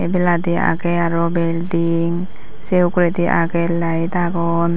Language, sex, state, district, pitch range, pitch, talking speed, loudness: Chakma, female, Tripura, Dhalai, 170-175 Hz, 170 Hz, 115 wpm, -18 LUFS